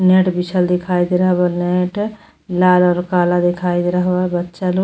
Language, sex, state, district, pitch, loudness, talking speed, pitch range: Bhojpuri, female, Uttar Pradesh, Deoria, 180 Hz, -16 LUFS, 210 wpm, 175-185 Hz